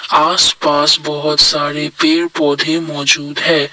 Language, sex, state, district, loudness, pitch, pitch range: Hindi, male, Assam, Kamrup Metropolitan, -13 LUFS, 150 Hz, 145-155 Hz